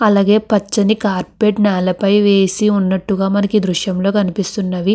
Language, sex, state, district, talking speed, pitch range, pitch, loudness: Telugu, female, Andhra Pradesh, Krishna, 135 wpm, 190-210 Hz, 200 Hz, -15 LUFS